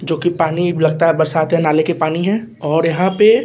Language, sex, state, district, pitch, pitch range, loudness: Hindi, male, Bihar, West Champaran, 165 Hz, 160-180 Hz, -15 LUFS